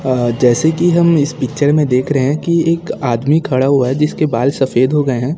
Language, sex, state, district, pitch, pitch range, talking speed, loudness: Hindi, male, Chhattisgarh, Raipur, 140 Hz, 130-155 Hz, 245 wpm, -14 LUFS